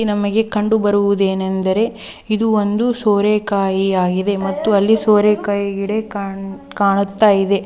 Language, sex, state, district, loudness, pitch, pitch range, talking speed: Kannada, female, Karnataka, Dharwad, -16 LUFS, 205 Hz, 195-215 Hz, 80 wpm